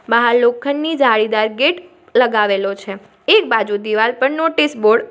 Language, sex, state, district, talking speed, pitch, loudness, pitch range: Gujarati, female, Gujarat, Valsad, 150 wpm, 235 Hz, -15 LUFS, 215-290 Hz